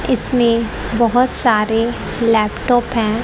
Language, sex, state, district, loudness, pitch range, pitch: Hindi, female, Haryana, Rohtak, -16 LUFS, 225-240 Hz, 230 Hz